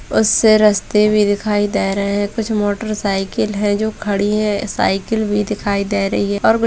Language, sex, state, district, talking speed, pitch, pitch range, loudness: Hindi, female, Bihar, Madhepura, 200 wpm, 210 Hz, 200-215 Hz, -16 LUFS